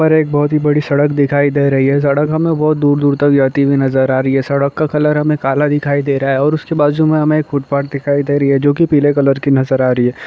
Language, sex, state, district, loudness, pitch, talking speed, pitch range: Hindi, male, Maharashtra, Nagpur, -13 LUFS, 145 Hz, 285 wpm, 140-150 Hz